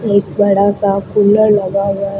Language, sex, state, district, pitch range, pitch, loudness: Hindi, female, Rajasthan, Bikaner, 200-205 Hz, 200 Hz, -13 LUFS